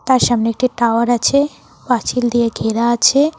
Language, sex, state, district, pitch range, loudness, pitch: Bengali, female, West Bengal, Cooch Behar, 235-260 Hz, -15 LUFS, 240 Hz